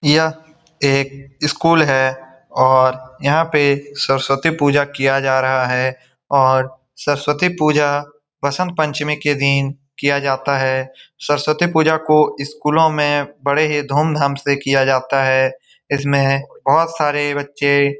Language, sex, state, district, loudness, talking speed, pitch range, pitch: Hindi, male, Bihar, Saran, -17 LUFS, 130 wpm, 135-150 Hz, 140 Hz